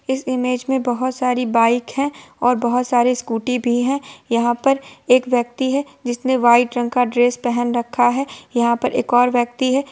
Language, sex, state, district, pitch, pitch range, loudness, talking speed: Hindi, female, Bihar, Supaul, 245 Hz, 240-260 Hz, -18 LUFS, 190 wpm